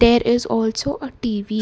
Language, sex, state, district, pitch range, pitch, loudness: English, female, Karnataka, Bangalore, 220-240 Hz, 235 Hz, -20 LUFS